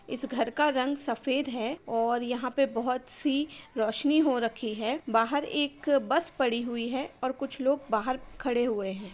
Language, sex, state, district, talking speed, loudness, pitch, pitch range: Hindi, female, Uttar Pradesh, Varanasi, 185 wpm, -29 LUFS, 255 Hz, 230-275 Hz